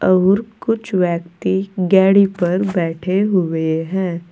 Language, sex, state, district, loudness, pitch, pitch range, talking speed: Hindi, female, Uttar Pradesh, Saharanpur, -17 LUFS, 185 Hz, 175-195 Hz, 110 wpm